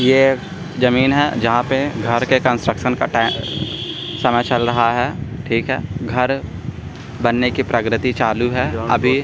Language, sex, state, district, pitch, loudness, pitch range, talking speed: Hindi, male, Bihar, Jamui, 125 Hz, -18 LUFS, 120-135 Hz, 135 wpm